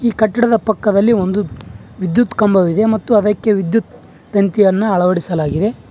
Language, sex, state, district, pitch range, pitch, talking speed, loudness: Kannada, male, Karnataka, Bangalore, 185-220 Hz, 205 Hz, 90 wpm, -15 LUFS